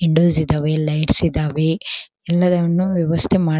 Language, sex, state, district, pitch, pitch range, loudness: Kannada, female, Karnataka, Belgaum, 165 Hz, 155-175 Hz, -18 LUFS